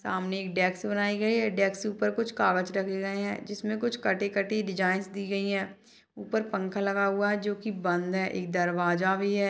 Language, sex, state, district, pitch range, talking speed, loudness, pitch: Hindi, female, Chhattisgarh, Bastar, 190-210 Hz, 215 wpm, -29 LUFS, 200 Hz